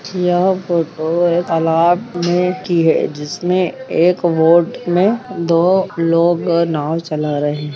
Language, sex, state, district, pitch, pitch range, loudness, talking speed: Hindi, male, Bihar, Saharsa, 170 Hz, 165-180 Hz, -16 LUFS, 140 wpm